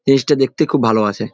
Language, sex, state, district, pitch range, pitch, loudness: Bengali, male, West Bengal, Jalpaiguri, 110-145 Hz, 135 Hz, -15 LUFS